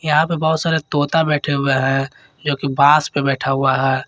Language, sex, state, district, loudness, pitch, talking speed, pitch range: Hindi, male, Jharkhand, Garhwa, -17 LUFS, 145 Hz, 205 wpm, 135-155 Hz